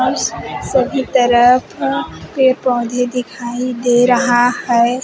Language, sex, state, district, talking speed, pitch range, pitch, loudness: Hindi, female, Chhattisgarh, Raipur, 95 wpm, 240-255 Hz, 245 Hz, -15 LUFS